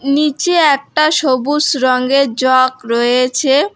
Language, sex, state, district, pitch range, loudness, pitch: Bengali, female, West Bengal, Alipurduar, 255-295 Hz, -13 LUFS, 270 Hz